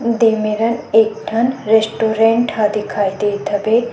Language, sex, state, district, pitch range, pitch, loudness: Chhattisgarhi, female, Chhattisgarh, Sukma, 210-230 Hz, 220 Hz, -16 LUFS